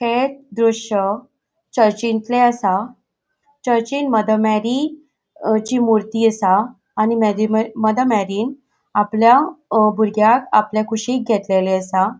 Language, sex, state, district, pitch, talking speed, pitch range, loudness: Konkani, female, Goa, North and South Goa, 225 Hz, 105 wpm, 215-250 Hz, -17 LUFS